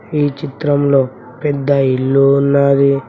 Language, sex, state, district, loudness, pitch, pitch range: Telugu, male, Telangana, Mahabubabad, -14 LUFS, 140 Hz, 135-145 Hz